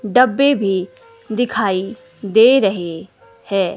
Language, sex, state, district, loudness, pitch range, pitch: Hindi, female, Himachal Pradesh, Shimla, -16 LUFS, 190-250 Hz, 205 Hz